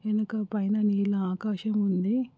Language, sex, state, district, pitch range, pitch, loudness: Telugu, female, Andhra Pradesh, Guntur, 200-215 Hz, 210 Hz, -27 LUFS